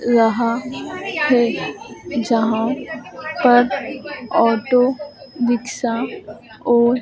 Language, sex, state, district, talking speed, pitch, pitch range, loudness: Hindi, female, Madhya Pradesh, Dhar, 60 wpm, 245 Hz, 235-270 Hz, -19 LUFS